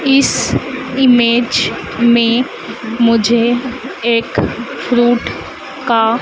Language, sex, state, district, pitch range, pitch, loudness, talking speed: Hindi, female, Madhya Pradesh, Dhar, 235-255 Hz, 240 Hz, -14 LUFS, 70 wpm